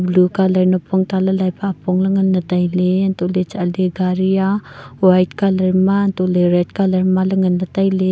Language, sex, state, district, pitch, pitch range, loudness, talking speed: Wancho, female, Arunachal Pradesh, Longding, 185 Hz, 180-190 Hz, -16 LUFS, 185 wpm